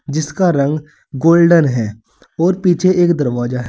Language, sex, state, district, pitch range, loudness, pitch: Hindi, male, Uttar Pradesh, Saharanpur, 130-175 Hz, -14 LUFS, 155 Hz